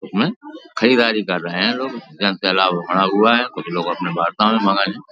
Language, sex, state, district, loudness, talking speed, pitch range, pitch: Hindi, male, Uttar Pradesh, Jalaun, -18 LUFS, 210 wpm, 90-110 Hz, 100 Hz